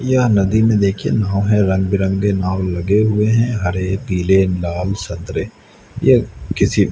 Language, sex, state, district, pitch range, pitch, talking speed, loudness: Hindi, male, Haryana, Rohtak, 95-105 Hz, 100 Hz, 155 wpm, -17 LUFS